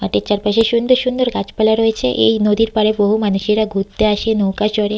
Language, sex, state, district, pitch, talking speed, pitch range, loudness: Bengali, female, West Bengal, Jhargram, 215 Hz, 180 wpm, 205-225 Hz, -16 LUFS